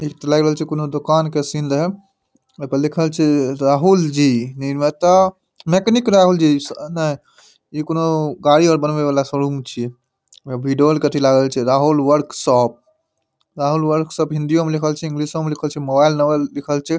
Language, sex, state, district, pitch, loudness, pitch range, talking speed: Maithili, male, Bihar, Madhepura, 150 Hz, -17 LUFS, 140-160 Hz, 185 wpm